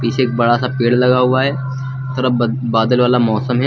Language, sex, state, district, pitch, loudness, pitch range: Hindi, male, Uttar Pradesh, Lucknow, 125 Hz, -15 LUFS, 120-130 Hz